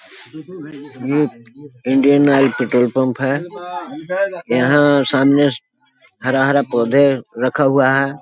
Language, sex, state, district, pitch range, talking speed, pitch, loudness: Hindi, male, Chhattisgarh, Balrampur, 130-145 Hz, 100 wpm, 140 Hz, -15 LUFS